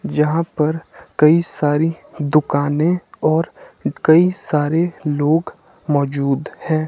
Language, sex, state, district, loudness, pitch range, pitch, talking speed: Hindi, male, Himachal Pradesh, Shimla, -18 LUFS, 150-165 Hz, 155 Hz, 95 wpm